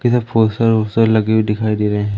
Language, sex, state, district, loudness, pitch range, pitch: Hindi, male, Madhya Pradesh, Umaria, -15 LUFS, 105-115 Hz, 110 Hz